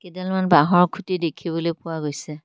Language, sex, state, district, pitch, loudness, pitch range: Assamese, female, Assam, Kamrup Metropolitan, 170 Hz, -21 LUFS, 160-185 Hz